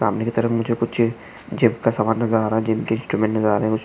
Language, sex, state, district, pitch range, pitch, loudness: Hindi, male, Maharashtra, Chandrapur, 110-115 Hz, 115 Hz, -21 LUFS